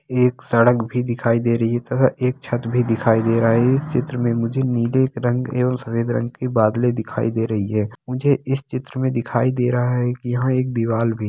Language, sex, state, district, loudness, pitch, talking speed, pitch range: Hindi, male, Bihar, Begusarai, -20 LUFS, 120 Hz, 230 wpm, 115-125 Hz